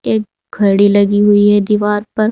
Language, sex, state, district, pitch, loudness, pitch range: Hindi, female, Uttar Pradesh, Saharanpur, 205 Hz, -12 LUFS, 205-210 Hz